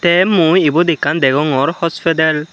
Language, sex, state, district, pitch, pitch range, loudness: Chakma, male, Tripura, Unakoti, 165 Hz, 150-170 Hz, -13 LUFS